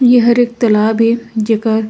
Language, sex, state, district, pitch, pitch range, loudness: Chhattisgarhi, female, Chhattisgarh, Korba, 230 Hz, 220-240 Hz, -13 LUFS